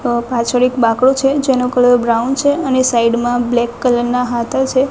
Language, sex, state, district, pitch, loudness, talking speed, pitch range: Gujarati, female, Gujarat, Gandhinagar, 245 Hz, -14 LUFS, 210 wpm, 240-260 Hz